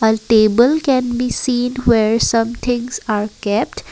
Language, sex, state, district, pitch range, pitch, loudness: English, female, Assam, Kamrup Metropolitan, 220-250 Hz, 235 Hz, -16 LUFS